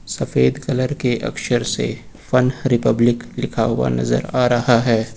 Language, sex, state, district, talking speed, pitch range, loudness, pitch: Hindi, male, Uttar Pradesh, Lucknow, 150 wpm, 110-125 Hz, -19 LUFS, 120 Hz